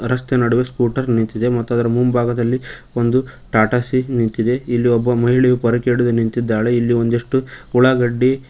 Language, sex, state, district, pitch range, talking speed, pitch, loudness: Kannada, male, Karnataka, Koppal, 120-125 Hz, 140 wpm, 120 Hz, -17 LUFS